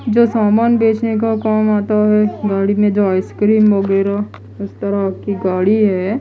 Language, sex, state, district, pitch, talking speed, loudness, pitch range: Hindi, female, Odisha, Malkangiri, 210 Hz, 165 wpm, -15 LUFS, 195-220 Hz